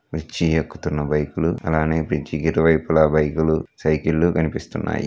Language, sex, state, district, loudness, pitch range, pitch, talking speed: Telugu, male, Andhra Pradesh, Guntur, -21 LUFS, 75-80 Hz, 80 Hz, 155 wpm